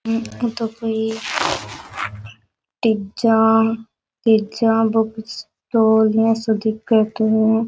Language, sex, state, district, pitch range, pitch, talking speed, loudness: Rajasthani, female, Rajasthan, Nagaur, 220-225 Hz, 220 Hz, 85 wpm, -19 LUFS